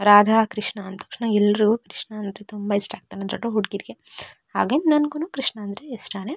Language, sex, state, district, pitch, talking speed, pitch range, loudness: Kannada, female, Karnataka, Shimoga, 210 Hz, 140 wpm, 205-235 Hz, -23 LUFS